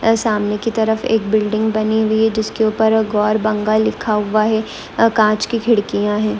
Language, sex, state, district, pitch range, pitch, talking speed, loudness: Hindi, female, West Bengal, Malda, 215-220 Hz, 215 Hz, 205 wpm, -16 LUFS